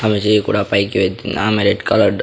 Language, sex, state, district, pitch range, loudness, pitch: Telugu, male, Andhra Pradesh, Sri Satya Sai, 100-105 Hz, -16 LUFS, 100 Hz